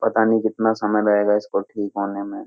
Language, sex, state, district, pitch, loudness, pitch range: Hindi, male, Uttar Pradesh, Jyotiba Phule Nagar, 105 Hz, -20 LUFS, 105-110 Hz